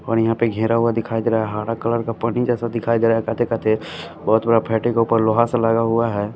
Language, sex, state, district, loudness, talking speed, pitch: Hindi, male, Bihar, West Champaran, -19 LUFS, 285 wpm, 115 Hz